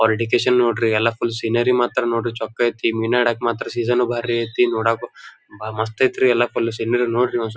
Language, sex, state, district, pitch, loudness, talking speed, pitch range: Kannada, male, Karnataka, Dharwad, 120 Hz, -19 LUFS, 160 wpm, 115-120 Hz